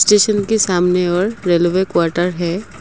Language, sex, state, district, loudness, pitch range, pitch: Hindi, female, Assam, Kamrup Metropolitan, -15 LUFS, 175-205 Hz, 180 Hz